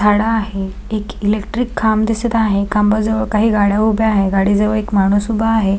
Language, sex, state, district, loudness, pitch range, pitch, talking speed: Marathi, female, Maharashtra, Sindhudurg, -16 LUFS, 205-220 Hz, 215 Hz, 195 wpm